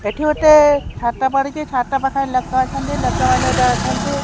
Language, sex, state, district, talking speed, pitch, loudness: Odia, male, Odisha, Khordha, 155 wpm, 260 Hz, -16 LUFS